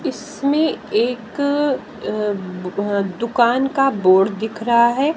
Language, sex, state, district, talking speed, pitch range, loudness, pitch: Hindi, female, Haryana, Jhajjar, 95 wpm, 205-275 Hz, -19 LUFS, 235 Hz